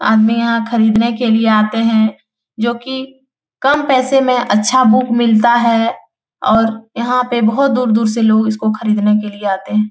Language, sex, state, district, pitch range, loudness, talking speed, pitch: Hindi, female, Bihar, Jahanabad, 220-245 Hz, -14 LUFS, 175 wpm, 230 Hz